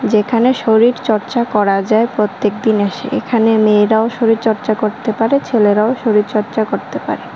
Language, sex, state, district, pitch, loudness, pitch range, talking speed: Bengali, male, Tripura, West Tripura, 220 Hz, -14 LUFS, 210-230 Hz, 140 wpm